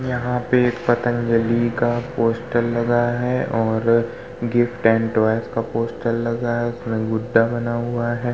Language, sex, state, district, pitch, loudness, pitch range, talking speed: Hindi, male, Uttar Pradesh, Muzaffarnagar, 120 Hz, -20 LUFS, 115-120 Hz, 130 wpm